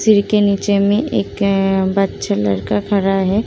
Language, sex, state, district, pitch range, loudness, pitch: Hindi, female, Uttar Pradesh, Muzaffarnagar, 190-205 Hz, -16 LUFS, 200 Hz